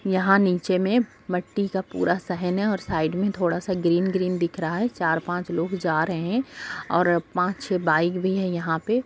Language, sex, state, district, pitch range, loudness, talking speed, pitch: Hindi, female, Bihar, Gopalganj, 170-195 Hz, -24 LUFS, 210 wpm, 180 Hz